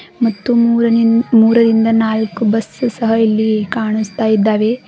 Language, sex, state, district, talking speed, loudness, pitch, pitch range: Kannada, female, Karnataka, Bidar, 110 wpm, -14 LUFS, 225 Hz, 220-230 Hz